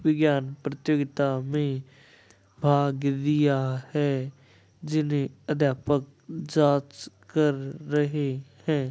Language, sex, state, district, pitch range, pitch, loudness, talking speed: Hindi, male, Bihar, Begusarai, 135-150 Hz, 140 Hz, -26 LUFS, 80 wpm